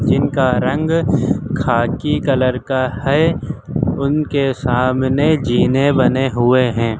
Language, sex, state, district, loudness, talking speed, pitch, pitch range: Hindi, male, Uttar Pradesh, Lucknow, -16 LUFS, 105 wpm, 135 Hz, 130-150 Hz